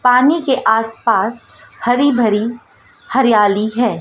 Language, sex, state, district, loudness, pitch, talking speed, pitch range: Hindi, female, Madhya Pradesh, Dhar, -15 LUFS, 235 Hz, 120 wpm, 220-255 Hz